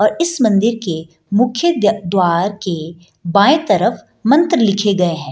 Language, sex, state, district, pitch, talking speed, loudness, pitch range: Hindi, female, Bihar, Gaya, 205 Hz, 160 wpm, -15 LUFS, 175-230 Hz